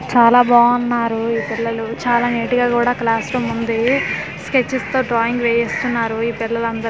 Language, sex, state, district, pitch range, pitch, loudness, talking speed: Telugu, female, Andhra Pradesh, Manyam, 230-245 Hz, 235 Hz, -17 LUFS, 165 wpm